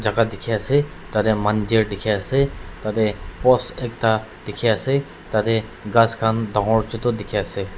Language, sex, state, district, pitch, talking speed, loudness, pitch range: Nagamese, male, Nagaland, Dimapur, 110 Hz, 145 wpm, -21 LUFS, 105-120 Hz